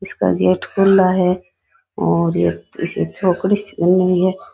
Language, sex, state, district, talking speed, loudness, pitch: Rajasthani, female, Rajasthan, Nagaur, 145 wpm, -17 LUFS, 180 Hz